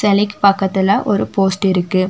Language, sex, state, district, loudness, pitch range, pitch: Tamil, female, Tamil Nadu, Nilgiris, -15 LUFS, 190-200 Hz, 195 Hz